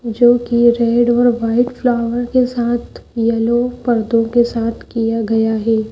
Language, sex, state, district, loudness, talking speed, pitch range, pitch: Hindi, female, Madhya Pradesh, Bhopal, -15 LUFS, 140 wpm, 230-240 Hz, 235 Hz